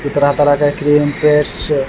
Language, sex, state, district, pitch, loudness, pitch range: Hindi, male, Bihar, Vaishali, 145 Hz, -13 LUFS, 145-150 Hz